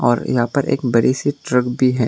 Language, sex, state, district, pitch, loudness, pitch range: Hindi, male, Tripura, West Tripura, 125 Hz, -18 LUFS, 120-135 Hz